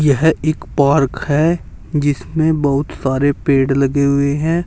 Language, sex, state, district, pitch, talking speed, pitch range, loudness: Hindi, male, Uttar Pradesh, Saharanpur, 145 Hz, 140 wpm, 140-155 Hz, -16 LUFS